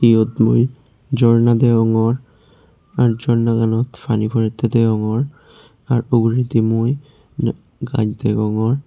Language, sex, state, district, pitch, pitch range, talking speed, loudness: Chakma, male, Tripura, West Tripura, 115 Hz, 110-120 Hz, 110 wpm, -17 LUFS